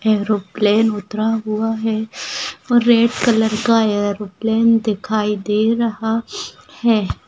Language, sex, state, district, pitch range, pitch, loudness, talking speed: Hindi, female, Rajasthan, Nagaur, 215-230 Hz, 220 Hz, -17 LUFS, 100 wpm